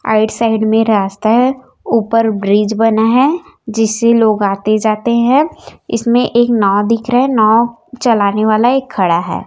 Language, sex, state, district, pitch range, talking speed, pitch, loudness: Hindi, female, Chhattisgarh, Raipur, 215-240 Hz, 165 wpm, 225 Hz, -13 LUFS